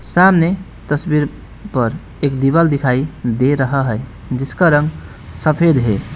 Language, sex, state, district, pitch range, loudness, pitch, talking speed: Hindi, male, West Bengal, Alipurduar, 130-160 Hz, -16 LUFS, 140 Hz, 125 wpm